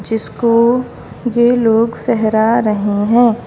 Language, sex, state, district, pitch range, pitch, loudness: Hindi, female, Uttar Pradesh, Lalitpur, 220-240 Hz, 230 Hz, -14 LUFS